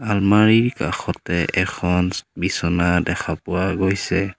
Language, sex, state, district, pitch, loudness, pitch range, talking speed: Assamese, male, Assam, Sonitpur, 95 Hz, -20 LUFS, 90-100 Hz, 95 wpm